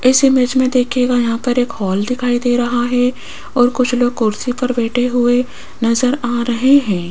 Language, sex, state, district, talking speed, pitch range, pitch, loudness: Hindi, female, Rajasthan, Jaipur, 205 wpm, 240-250 Hz, 245 Hz, -15 LUFS